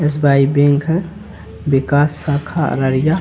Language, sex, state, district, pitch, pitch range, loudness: Hindi, male, Bihar, Araria, 145 Hz, 140-155 Hz, -15 LUFS